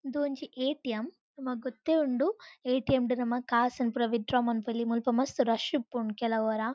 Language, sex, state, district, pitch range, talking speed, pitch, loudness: Tulu, female, Karnataka, Dakshina Kannada, 235-270 Hz, 175 wpm, 250 Hz, -30 LUFS